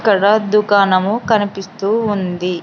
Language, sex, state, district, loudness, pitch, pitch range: Telugu, female, Andhra Pradesh, Sri Satya Sai, -15 LUFS, 205 Hz, 195-210 Hz